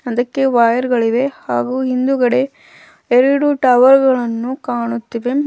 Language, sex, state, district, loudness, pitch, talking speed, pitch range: Kannada, female, Karnataka, Bidar, -15 LUFS, 250 Hz, 100 wpm, 240-265 Hz